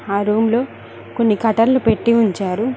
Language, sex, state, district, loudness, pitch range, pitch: Telugu, female, Telangana, Mahabubabad, -16 LUFS, 210-235 Hz, 225 Hz